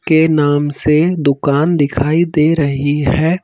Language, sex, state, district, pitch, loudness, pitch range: Hindi, male, Madhya Pradesh, Bhopal, 150 Hz, -14 LUFS, 145-160 Hz